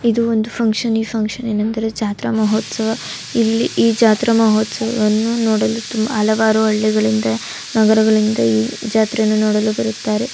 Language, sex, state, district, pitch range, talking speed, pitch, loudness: Kannada, female, Karnataka, Dharwad, 215-225 Hz, 120 wpm, 220 Hz, -16 LUFS